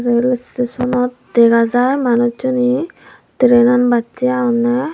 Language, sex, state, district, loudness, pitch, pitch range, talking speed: Chakma, female, Tripura, Dhalai, -15 LUFS, 245 Hz, 240-250 Hz, 135 wpm